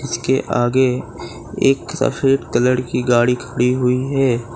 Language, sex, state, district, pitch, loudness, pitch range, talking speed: Hindi, male, Gujarat, Valsad, 125 Hz, -17 LUFS, 120-135 Hz, 130 wpm